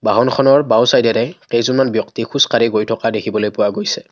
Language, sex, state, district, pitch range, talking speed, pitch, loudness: Assamese, male, Assam, Kamrup Metropolitan, 115-135 Hz, 145 wpm, 115 Hz, -15 LUFS